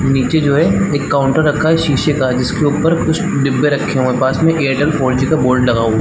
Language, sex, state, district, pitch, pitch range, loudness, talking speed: Hindi, male, Chhattisgarh, Balrampur, 140 Hz, 130-155 Hz, -14 LUFS, 260 wpm